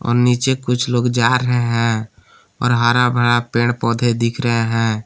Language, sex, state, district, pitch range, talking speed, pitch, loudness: Hindi, male, Jharkhand, Palamu, 115-125 Hz, 180 wpm, 120 Hz, -17 LUFS